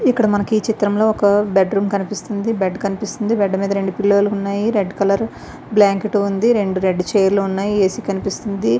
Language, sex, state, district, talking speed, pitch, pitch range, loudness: Telugu, female, Andhra Pradesh, Visakhapatnam, 145 wpm, 200 Hz, 195-210 Hz, -18 LUFS